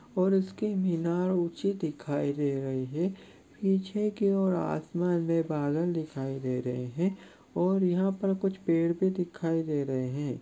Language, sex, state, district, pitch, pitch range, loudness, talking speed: Hindi, male, Chhattisgarh, Korba, 170 Hz, 145-190 Hz, -30 LUFS, 160 wpm